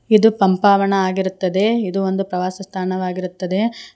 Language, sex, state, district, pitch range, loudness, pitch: Kannada, female, Karnataka, Koppal, 185-200 Hz, -18 LUFS, 190 Hz